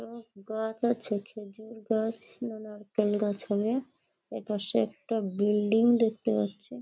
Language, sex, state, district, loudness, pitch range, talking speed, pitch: Bengali, female, West Bengal, Kolkata, -29 LUFS, 205-230 Hz, 125 wpm, 220 Hz